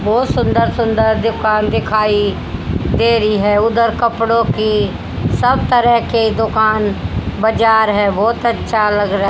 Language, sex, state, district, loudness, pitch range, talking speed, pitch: Hindi, female, Haryana, Charkhi Dadri, -14 LUFS, 210-230 Hz, 135 wpm, 220 Hz